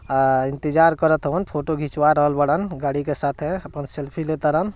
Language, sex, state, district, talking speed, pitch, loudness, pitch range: Bhojpuri, male, Bihar, Gopalganj, 165 wpm, 150 Hz, -21 LUFS, 145-160 Hz